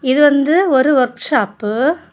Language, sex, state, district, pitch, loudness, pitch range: Tamil, female, Tamil Nadu, Kanyakumari, 275 Hz, -14 LUFS, 250-295 Hz